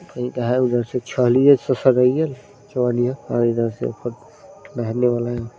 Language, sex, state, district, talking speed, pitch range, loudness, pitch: Hindi, male, Bihar, Saran, 75 wpm, 120-130 Hz, -19 LUFS, 125 Hz